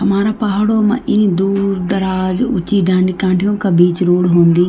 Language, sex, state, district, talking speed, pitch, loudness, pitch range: Garhwali, female, Uttarakhand, Tehri Garhwal, 165 wpm, 195 Hz, -14 LUFS, 185-210 Hz